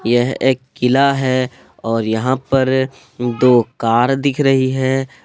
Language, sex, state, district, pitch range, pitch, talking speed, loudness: Hindi, male, Jharkhand, Palamu, 120-135 Hz, 130 Hz, 135 wpm, -16 LUFS